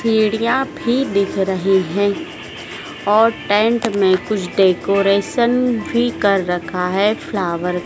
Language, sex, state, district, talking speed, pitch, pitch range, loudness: Hindi, female, Madhya Pradesh, Dhar, 115 wpm, 200 Hz, 190-225 Hz, -17 LUFS